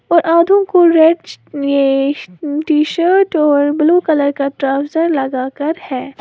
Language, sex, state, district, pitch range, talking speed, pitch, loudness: Hindi, female, Uttar Pradesh, Lalitpur, 275-335 Hz, 145 wpm, 300 Hz, -14 LUFS